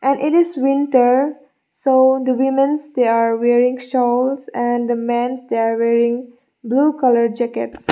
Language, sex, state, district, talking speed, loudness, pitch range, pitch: English, female, Mizoram, Aizawl, 150 wpm, -17 LUFS, 240-270 Hz, 250 Hz